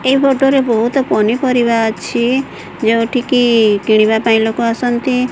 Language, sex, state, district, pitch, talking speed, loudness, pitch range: Odia, female, Odisha, Sambalpur, 235 Hz, 100 wpm, -13 LUFS, 225-255 Hz